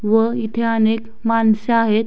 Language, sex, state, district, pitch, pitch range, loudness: Marathi, female, Maharashtra, Sindhudurg, 225 Hz, 220-230 Hz, -18 LUFS